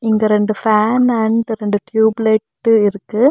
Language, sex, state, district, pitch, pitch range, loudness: Tamil, female, Tamil Nadu, Nilgiris, 220 Hz, 215-225 Hz, -15 LUFS